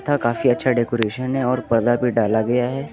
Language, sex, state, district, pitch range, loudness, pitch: Hindi, male, Uttar Pradesh, Lucknow, 115-130 Hz, -20 LUFS, 125 Hz